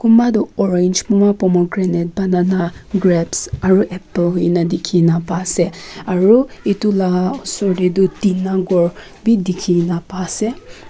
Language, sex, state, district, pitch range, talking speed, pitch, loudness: Nagamese, female, Nagaland, Kohima, 175-200 Hz, 150 wpm, 185 Hz, -16 LUFS